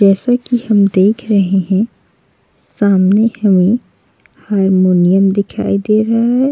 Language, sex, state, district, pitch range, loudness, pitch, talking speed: Hindi, female, Uttar Pradesh, Jalaun, 195-225 Hz, -13 LUFS, 200 Hz, 120 wpm